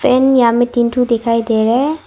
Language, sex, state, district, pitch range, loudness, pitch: Hindi, female, Arunachal Pradesh, Longding, 230-260 Hz, -13 LUFS, 240 Hz